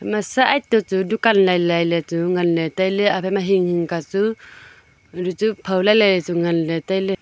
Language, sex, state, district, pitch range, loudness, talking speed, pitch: Wancho, female, Arunachal Pradesh, Longding, 175-210 Hz, -19 LUFS, 185 wpm, 190 Hz